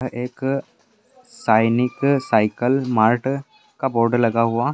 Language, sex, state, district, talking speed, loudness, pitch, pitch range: Hindi, male, Bihar, Jahanabad, 115 wpm, -20 LUFS, 125 Hz, 115-135 Hz